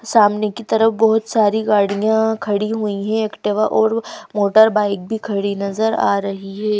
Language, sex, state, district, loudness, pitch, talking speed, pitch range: Hindi, female, Madhya Pradesh, Bhopal, -17 LUFS, 215 Hz, 165 wpm, 205-220 Hz